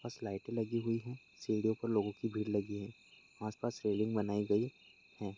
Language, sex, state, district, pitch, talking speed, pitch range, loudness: Hindi, male, Bihar, Lakhisarai, 110 Hz, 190 wpm, 105-115 Hz, -37 LUFS